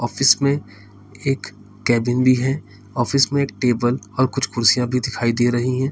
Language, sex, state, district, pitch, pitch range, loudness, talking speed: Hindi, male, Uttar Pradesh, Lalitpur, 125 Hz, 115-135 Hz, -19 LUFS, 170 wpm